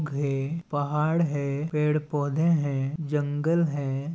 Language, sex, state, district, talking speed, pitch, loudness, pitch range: Chhattisgarhi, male, Chhattisgarh, Balrampur, 100 wpm, 150 Hz, -26 LUFS, 145-155 Hz